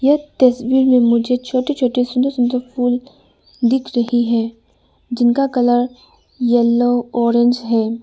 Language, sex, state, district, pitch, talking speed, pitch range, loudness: Hindi, female, Arunachal Pradesh, Lower Dibang Valley, 245 Hz, 125 wpm, 240-255 Hz, -16 LUFS